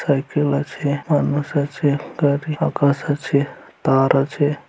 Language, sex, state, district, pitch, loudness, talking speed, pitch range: Bengali, male, West Bengal, Malda, 145 Hz, -20 LUFS, 100 wpm, 140-145 Hz